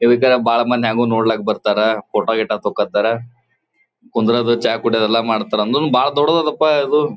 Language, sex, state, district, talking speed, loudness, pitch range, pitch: Kannada, male, Karnataka, Gulbarga, 150 wpm, -16 LUFS, 110-125 Hz, 115 Hz